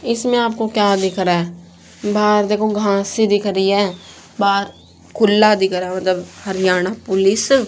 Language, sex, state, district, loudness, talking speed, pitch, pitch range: Hindi, female, Haryana, Charkhi Dadri, -17 LUFS, 155 wpm, 200 Hz, 190-215 Hz